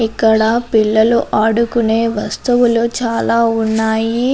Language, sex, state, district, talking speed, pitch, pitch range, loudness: Telugu, female, Andhra Pradesh, Anantapur, 85 wpm, 230 Hz, 220-235 Hz, -14 LUFS